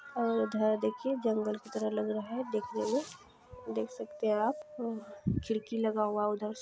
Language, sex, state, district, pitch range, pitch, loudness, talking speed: Maithili, female, Bihar, Supaul, 215-240 Hz, 220 Hz, -34 LUFS, 190 wpm